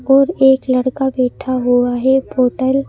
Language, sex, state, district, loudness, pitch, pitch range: Hindi, female, Madhya Pradesh, Bhopal, -15 LUFS, 260 Hz, 255-265 Hz